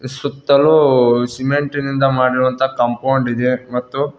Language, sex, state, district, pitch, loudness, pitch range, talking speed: Kannada, male, Karnataka, Koppal, 130 Hz, -15 LUFS, 125-140 Hz, 100 wpm